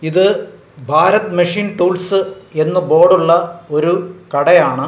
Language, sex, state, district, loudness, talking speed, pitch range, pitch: Malayalam, male, Kerala, Kasaragod, -14 LUFS, 110 wpm, 160-185 Hz, 175 Hz